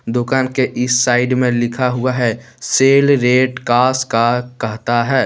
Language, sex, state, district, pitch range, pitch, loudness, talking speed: Hindi, male, Jharkhand, Deoghar, 120-130 Hz, 125 Hz, -15 LUFS, 160 wpm